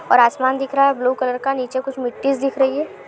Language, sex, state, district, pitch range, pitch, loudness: Hindi, female, Uttar Pradesh, Jyotiba Phule Nagar, 255-275 Hz, 265 Hz, -19 LUFS